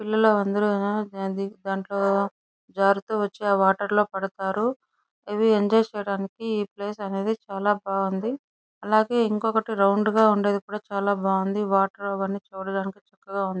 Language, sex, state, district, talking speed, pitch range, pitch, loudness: Telugu, female, Andhra Pradesh, Chittoor, 130 wpm, 195-215 Hz, 200 Hz, -24 LUFS